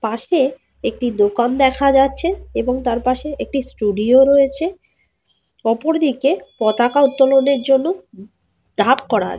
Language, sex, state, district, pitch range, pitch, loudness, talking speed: Bengali, female, Jharkhand, Sahebganj, 240-280 Hz, 270 Hz, -17 LUFS, 115 wpm